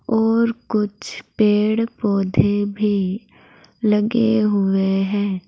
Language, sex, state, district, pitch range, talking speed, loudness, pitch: Hindi, female, Uttar Pradesh, Saharanpur, 200-225 Hz, 90 wpm, -19 LUFS, 210 Hz